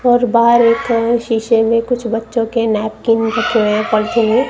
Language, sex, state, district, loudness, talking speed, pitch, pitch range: Hindi, female, Punjab, Kapurthala, -14 LUFS, 185 wpm, 230 Hz, 225-235 Hz